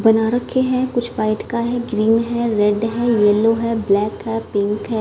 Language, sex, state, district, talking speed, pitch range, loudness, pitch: Hindi, male, Haryana, Charkhi Dadri, 205 wpm, 215-235 Hz, -18 LUFS, 225 Hz